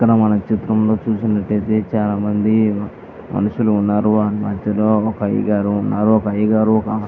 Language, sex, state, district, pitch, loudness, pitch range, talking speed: Telugu, male, Andhra Pradesh, Visakhapatnam, 105 Hz, -17 LUFS, 105-110 Hz, 125 wpm